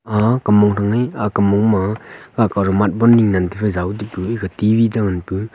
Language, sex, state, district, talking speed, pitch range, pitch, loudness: Wancho, male, Arunachal Pradesh, Longding, 240 wpm, 100-110 Hz, 105 Hz, -16 LUFS